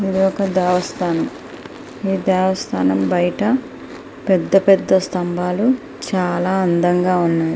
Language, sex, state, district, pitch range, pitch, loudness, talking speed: Telugu, female, Andhra Pradesh, Srikakulam, 175-195 Hz, 185 Hz, -18 LUFS, 85 wpm